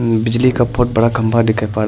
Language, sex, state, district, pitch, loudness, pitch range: Hindi, male, Arunachal Pradesh, Lower Dibang Valley, 115 Hz, -15 LUFS, 110-120 Hz